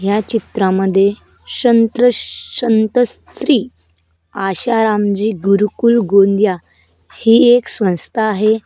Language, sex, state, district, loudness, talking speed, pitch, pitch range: Marathi, female, Maharashtra, Gondia, -14 LUFS, 75 wpm, 210 Hz, 190-230 Hz